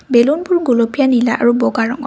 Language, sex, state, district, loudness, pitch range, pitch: Assamese, female, Assam, Kamrup Metropolitan, -14 LUFS, 235-280 Hz, 245 Hz